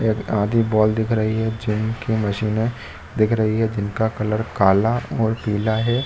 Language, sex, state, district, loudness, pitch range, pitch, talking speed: Hindi, male, Chhattisgarh, Bilaspur, -20 LUFS, 105-115 Hz, 110 Hz, 180 wpm